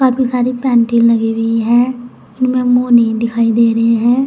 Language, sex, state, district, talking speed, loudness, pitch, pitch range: Hindi, female, Uttar Pradesh, Saharanpur, 155 wpm, -13 LUFS, 235 Hz, 230-250 Hz